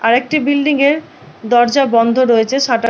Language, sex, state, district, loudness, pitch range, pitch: Bengali, female, West Bengal, Purulia, -13 LUFS, 235-285 Hz, 255 Hz